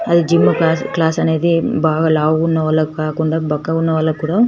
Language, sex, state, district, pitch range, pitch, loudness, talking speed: Telugu, female, Telangana, Nalgonda, 155-165 Hz, 160 Hz, -16 LUFS, 185 wpm